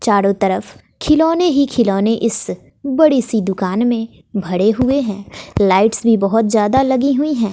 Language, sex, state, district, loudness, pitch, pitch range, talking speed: Hindi, female, Bihar, West Champaran, -15 LUFS, 225 Hz, 205-265 Hz, 160 wpm